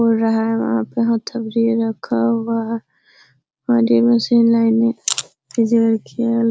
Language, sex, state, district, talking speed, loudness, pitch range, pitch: Hindi, female, Bihar, Araria, 175 wpm, -17 LUFS, 175-230 Hz, 230 Hz